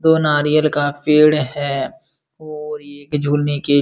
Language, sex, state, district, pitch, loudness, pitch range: Hindi, male, Bihar, Supaul, 150 Hz, -16 LUFS, 145-155 Hz